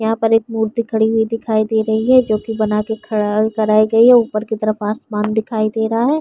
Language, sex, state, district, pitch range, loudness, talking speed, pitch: Hindi, female, Uttar Pradesh, Varanasi, 215-225 Hz, -16 LUFS, 250 wpm, 220 Hz